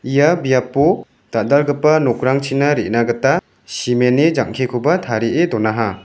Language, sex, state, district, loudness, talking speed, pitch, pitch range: Garo, male, Meghalaya, West Garo Hills, -16 LUFS, 100 wpm, 130 Hz, 115-145 Hz